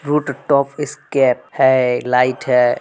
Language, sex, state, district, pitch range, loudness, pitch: Hindi, male, Bihar, Muzaffarpur, 125-140 Hz, -16 LUFS, 130 Hz